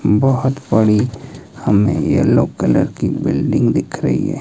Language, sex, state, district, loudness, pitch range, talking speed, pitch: Hindi, male, Himachal Pradesh, Shimla, -16 LUFS, 105-135 Hz, 135 wpm, 115 Hz